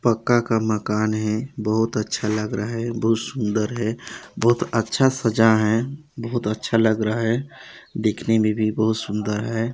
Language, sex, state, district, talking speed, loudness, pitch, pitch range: Hindi, male, Chhattisgarh, Balrampur, 165 wpm, -22 LUFS, 110 Hz, 110-115 Hz